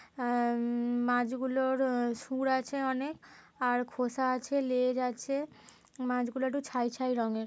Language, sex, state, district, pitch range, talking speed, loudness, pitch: Bengali, female, West Bengal, Kolkata, 245-265 Hz, 155 wpm, -32 LUFS, 255 Hz